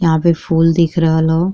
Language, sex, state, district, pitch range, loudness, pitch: Bhojpuri, female, Uttar Pradesh, Deoria, 160-170 Hz, -14 LUFS, 165 Hz